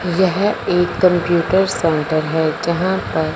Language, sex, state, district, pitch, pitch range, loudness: Hindi, female, Punjab, Fazilka, 175 Hz, 160-185 Hz, -17 LUFS